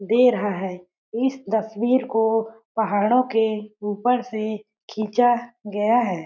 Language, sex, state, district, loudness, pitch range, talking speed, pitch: Hindi, female, Chhattisgarh, Balrampur, -22 LUFS, 210-240 Hz, 125 wpm, 220 Hz